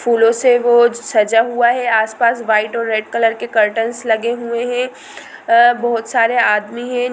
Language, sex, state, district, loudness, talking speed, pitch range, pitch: Hindi, female, Bihar, Sitamarhi, -15 LUFS, 185 wpm, 225-240 Hz, 235 Hz